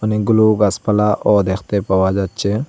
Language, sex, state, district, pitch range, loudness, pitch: Bengali, male, Assam, Hailakandi, 100-110 Hz, -16 LUFS, 105 Hz